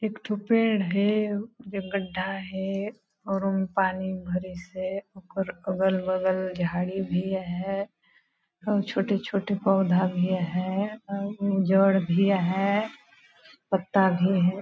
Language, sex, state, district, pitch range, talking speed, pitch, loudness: Hindi, female, Chhattisgarh, Balrampur, 185-200 Hz, 100 wpm, 195 Hz, -27 LUFS